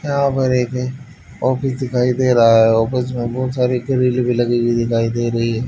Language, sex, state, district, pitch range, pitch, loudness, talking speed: Hindi, male, Haryana, Charkhi Dadri, 120-130 Hz, 125 Hz, -17 LUFS, 210 wpm